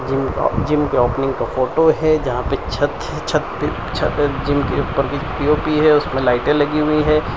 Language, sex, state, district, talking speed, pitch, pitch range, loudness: Hindi, male, Gujarat, Valsad, 205 wpm, 145 Hz, 130-150 Hz, -18 LUFS